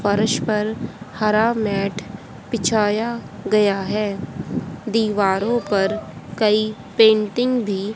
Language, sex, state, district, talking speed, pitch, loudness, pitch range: Hindi, female, Haryana, Rohtak, 90 wpm, 215 Hz, -20 LUFS, 200-220 Hz